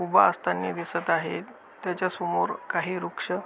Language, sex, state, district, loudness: Marathi, male, Maharashtra, Aurangabad, -27 LUFS